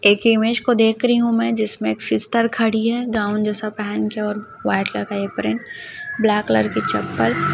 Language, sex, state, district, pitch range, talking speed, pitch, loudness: Hindi, female, Chhattisgarh, Raipur, 205-230 Hz, 200 wpm, 215 Hz, -20 LUFS